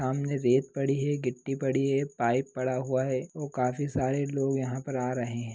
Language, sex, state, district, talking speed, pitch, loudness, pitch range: Hindi, male, Bihar, Jahanabad, 215 wpm, 130 Hz, -29 LUFS, 125-140 Hz